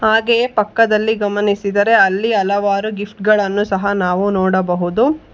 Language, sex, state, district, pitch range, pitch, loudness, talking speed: Kannada, female, Karnataka, Bangalore, 195-220 Hz, 205 Hz, -15 LUFS, 110 wpm